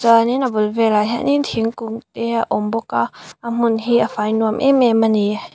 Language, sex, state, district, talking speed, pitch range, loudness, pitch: Mizo, female, Mizoram, Aizawl, 225 wpm, 220-235 Hz, -18 LUFS, 230 Hz